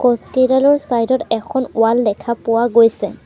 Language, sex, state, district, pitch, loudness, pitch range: Assamese, female, Assam, Sonitpur, 235 Hz, -15 LUFS, 225-255 Hz